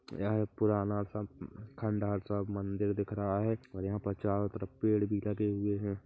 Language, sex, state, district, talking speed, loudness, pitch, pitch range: Hindi, male, Chhattisgarh, Bilaspur, 200 wpm, -34 LUFS, 105 Hz, 100-105 Hz